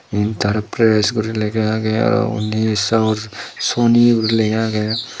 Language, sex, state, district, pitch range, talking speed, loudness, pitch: Chakma, male, Tripura, Dhalai, 110-115 Hz, 115 wpm, -17 LUFS, 110 Hz